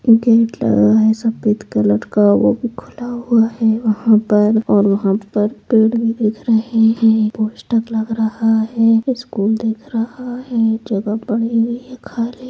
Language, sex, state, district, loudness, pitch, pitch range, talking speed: Hindi, female, Bihar, Saharsa, -16 LUFS, 225 Hz, 215-230 Hz, 165 wpm